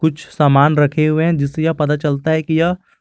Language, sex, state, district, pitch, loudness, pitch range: Hindi, male, Jharkhand, Garhwa, 155 Hz, -16 LUFS, 145-160 Hz